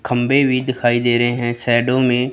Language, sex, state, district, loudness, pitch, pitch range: Hindi, female, Chandigarh, Chandigarh, -16 LUFS, 125 Hz, 120-130 Hz